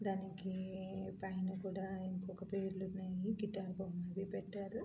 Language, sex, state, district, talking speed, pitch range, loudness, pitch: Telugu, female, Andhra Pradesh, Anantapur, 110 wpm, 190-195 Hz, -43 LUFS, 190 Hz